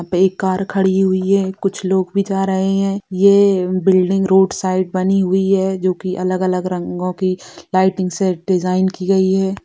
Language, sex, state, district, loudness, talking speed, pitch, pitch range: Hindi, female, Bihar, Sitamarhi, -16 LUFS, 190 wpm, 190 Hz, 185-195 Hz